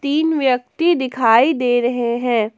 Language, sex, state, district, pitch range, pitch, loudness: Hindi, female, Jharkhand, Palamu, 240-285 Hz, 250 Hz, -17 LUFS